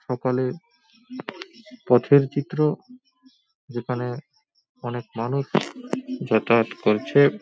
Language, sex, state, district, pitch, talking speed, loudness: Bengali, male, West Bengal, Paschim Medinipur, 140 Hz, 65 wpm, -23 LUFS